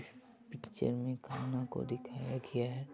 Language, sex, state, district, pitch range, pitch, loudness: Hindi, female, Bihar, Begusarai, 125-135 Hz, 130 Hz, -39 LUFS